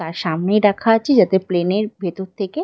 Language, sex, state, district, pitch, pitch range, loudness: Bengali, female, West Bengal, Dakshin Dinajpur, 195 Hz, 180-215 Hz, -18 LUFS